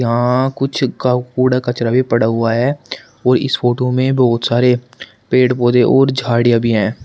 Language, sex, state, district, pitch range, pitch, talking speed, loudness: Hindi, male, Uttar Pradesh, Shamli, 120-130 Hz, 125 Hz, 160 wpm, -15 LUFS